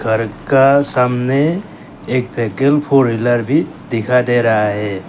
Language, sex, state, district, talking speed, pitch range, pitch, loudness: Hindi, male, Arunachal Pradesh, Lower Dibang Valley, 140 wpm, 115-135 Hz, 125 Hz, -15 LUFS